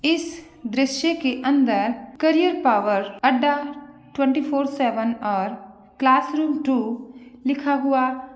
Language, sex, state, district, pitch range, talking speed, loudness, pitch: Hindi, female, Bihar, Begusarai, 245-285 Hz, 115 wpm, -21 LUFS, 265 Hz